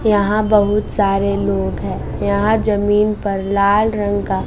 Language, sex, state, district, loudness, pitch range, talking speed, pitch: Hindi, female, Bihar, West Champaran, -16 LUFS, 200-210 Hz, 150 wpm, 205 Hz